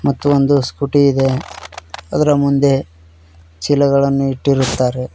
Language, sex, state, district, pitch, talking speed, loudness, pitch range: Kannada, male, Karnataka, Koppal, 135 Hz, 95 wpm, -15 LUFS, 125-140 Hz